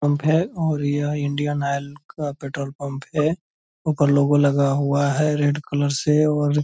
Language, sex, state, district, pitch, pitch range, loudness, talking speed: Hindi, male, Bihar, Purnia, 145 Hz, 140-150 Hz, -21 LUFS, 190 wpm